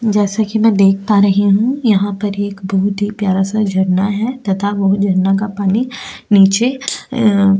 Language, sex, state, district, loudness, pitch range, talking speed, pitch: Hindi, female, Goa, North and South Goa, -14 LUFS, 195-215 Hz, 180 wpm, 200 Hz